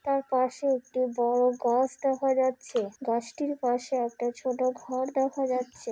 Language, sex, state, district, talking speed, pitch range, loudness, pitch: Bengali, female, West Bengal, Dakshin Dinajpur, 140 wpm, 245-265 Hz, -28 LUFS, 255 Hz